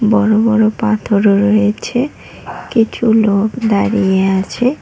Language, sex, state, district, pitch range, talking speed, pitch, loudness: Bengali, female, West Bengal, Cooch Behar, 205-225 Hz, 100 wpm, 215 Hz, -13 LUFS